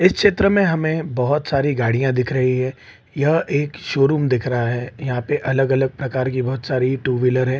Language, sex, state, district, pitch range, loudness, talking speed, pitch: Hindi, male, Bihar, Saran, 125-145 Hz, -19 LUFS, 205 wpm, 135 Hz